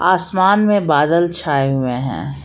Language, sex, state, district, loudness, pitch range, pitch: Hindi, female, Jharkhand, Palamu, -16 LUFS, 135-185 Hz, 170 Hz